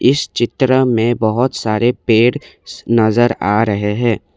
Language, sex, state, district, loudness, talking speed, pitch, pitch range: Hindi, male, Assam, Kamrup Metropolitan, -15 LUFS, 135 wpm, 115 Hz, 110-125 Hz